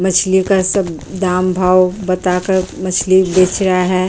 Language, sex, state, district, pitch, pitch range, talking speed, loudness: Hindi, female, Uttar Pradesh, Jyotiba Phule Nagar, 185 Hz, 185-190 Hz, 160 wpm, -14 LUFS